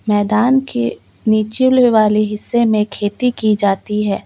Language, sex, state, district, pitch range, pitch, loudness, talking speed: Hindi, female, West Bengal, Alipurduar, 210-240 Hz, 215 Hz, -15 LUFS, 140 wpm